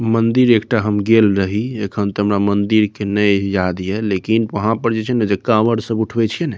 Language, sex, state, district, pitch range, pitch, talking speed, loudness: Maithili, male, Bihar, Saharsa, 100-115 Hz, 110 Hz, 245 wpm, -17 LUFS